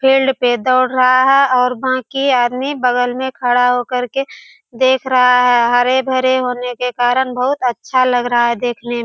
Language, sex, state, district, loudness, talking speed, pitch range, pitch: Hindi, female, Bihar, Purnia, -14 LUFS, 185 wpm, 245-260 Hz, 250 Hz